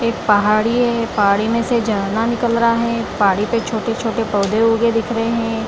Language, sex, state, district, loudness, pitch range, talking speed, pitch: Hindi, female, Bihar, Lakhisarai, -17 LUFS, 215-230 Hz, 200 wpm, 230 Hz